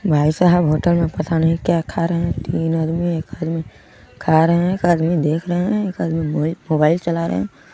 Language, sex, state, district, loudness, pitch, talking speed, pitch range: Hindi, female, Chhattisgarh, Balrampur, -18 LUFS, 165 Hz, 215 wpm, 160-170 Hz